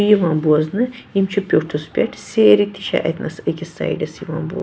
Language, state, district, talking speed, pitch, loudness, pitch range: Kashmiri, Punjab, Kapurthala, 180 wpm, 160 Hz, -18 LUFS, 150-205 Hz